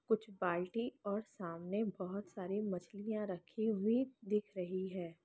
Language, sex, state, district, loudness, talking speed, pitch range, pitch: Hindi, female, Chhattisgarh, Sukma, -40 LUFS, 135 wpm, 185-215 Hz, 200 Hz